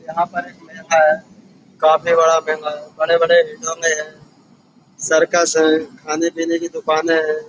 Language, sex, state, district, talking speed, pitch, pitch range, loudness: Hindi, male, Uttar Pradesh, Budaun, 130 wpm, 165 Hz, 155-170 Hz, -17 LUFS